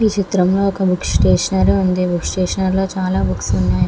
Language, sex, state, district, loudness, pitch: Telugu, female, Andhra Pradesh, Visakhapatnam, -17 LUFS, 185 Hz